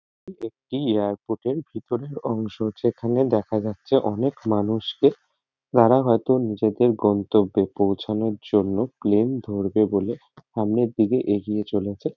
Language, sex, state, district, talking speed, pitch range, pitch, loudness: Bengali, male, West Bengal, North 24 Parganas, 125 wpm, 105-120 Hz, 110 Hz, -23 LUFS